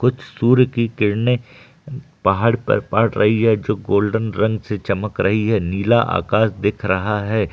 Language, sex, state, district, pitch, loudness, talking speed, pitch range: Hindi, male, Bihar, Gaya, 110 Hz, -18 LUFS, 165 wpm, 105-120 Hz